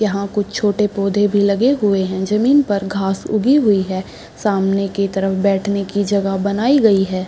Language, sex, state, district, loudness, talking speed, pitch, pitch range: Hindi, female, Bihar, Madhepura, -17 LUFS, 200 wpm, 200 Hz, 195-210 Hz